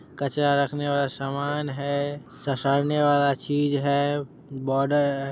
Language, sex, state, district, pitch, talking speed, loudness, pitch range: Hindi, male, Bihar, Muzaffarpur, 140 Hz, 125 wpm, -25 LUFS, 140-145 Hz